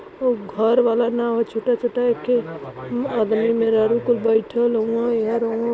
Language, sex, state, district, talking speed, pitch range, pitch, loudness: Hindi, female, Uttar Pradesh, Varanasi, 145 wpm, 225-240 Hz, 235 Hz, -20 LUFS